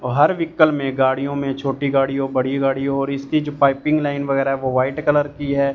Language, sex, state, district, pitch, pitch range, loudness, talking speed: Hindi, male, Punjab, Fazilka, 140 Hz, 135-145 Hz, -19 LUFS, 210 wpm